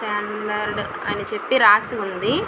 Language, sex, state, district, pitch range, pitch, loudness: Telugu, female, Andhra Pradesh, Visakhapatnam, 210-220 Hz, 210 Hz, -20 LUFS